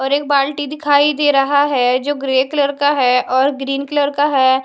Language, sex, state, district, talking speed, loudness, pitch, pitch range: Hindi, female, Odisha, Khordha, 220 wpm, -15 LUFS, 280 Hz, 265-290 Hz